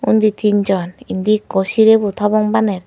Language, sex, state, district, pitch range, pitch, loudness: Chakma, female, Tripura, Unakoti, 195-215 Hz, 210 Hz, -15 LUFS